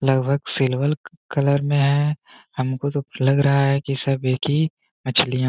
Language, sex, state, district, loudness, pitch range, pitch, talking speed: Hindi, male, Uttar Pradesh, Gorakhpur, -21 LUFS, 130-145 Hz, 140 Hz, 175 wpm